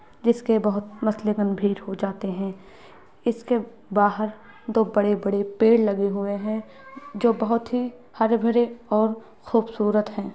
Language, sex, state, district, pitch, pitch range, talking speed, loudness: Hindi, female, Uttar Pradesh, Etah, 215 Hz, 205-230 Hz, 130 wpm, -24 LUFS